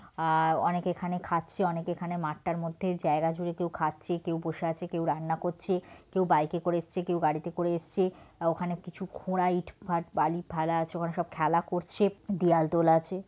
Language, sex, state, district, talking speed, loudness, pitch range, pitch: Bengali, female, West Bengal, Purulia, 200 wpm, -30 LUFS, 165-180 Hz, 175 Hz